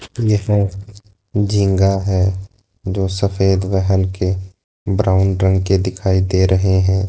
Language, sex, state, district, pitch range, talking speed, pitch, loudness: Hindi, male, Rajasthan, Jaipur, 95-100 Hz, 110 wpm, 95 Hz, -17 LUFS